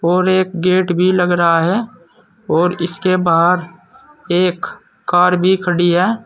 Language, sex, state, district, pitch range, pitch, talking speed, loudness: Hindi, male, Uttar Pradesh, Saharanpur, 175-185 Hz, 180 Hz, 145 wpm, -15 LUFS